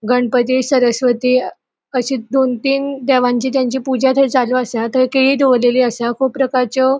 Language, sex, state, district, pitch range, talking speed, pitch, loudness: Konkani, female, Goa, North and South Goa, 250-265 Hz, 155 wpm, 255 Hz, -15 LUFS